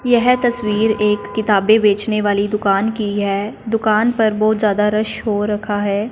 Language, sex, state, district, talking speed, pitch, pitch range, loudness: Hindi, female, Punjab, Fazilka, 165 wpm, 210 Hz, 205-220 Hz, -16 LUFS